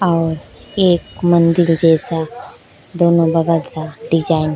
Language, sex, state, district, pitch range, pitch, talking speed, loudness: Hindi, female, Bihar, Katihar, 160-170 Hz, 165 Hz, 120 wpm, -15 LUFS